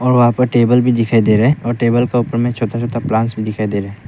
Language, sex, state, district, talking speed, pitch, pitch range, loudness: Hindi, male, Arunachal Pradesh, Papum Pare, 295 wpm, 120 Hz, 110-120 Hz, -15 LUFS